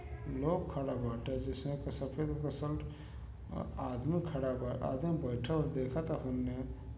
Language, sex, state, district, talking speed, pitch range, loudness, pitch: Bhojpuri, male, Uttar Pradesh, Gorakhpur, 145 wpm, 125-150 Hz, -38 LUFS, 130 Hz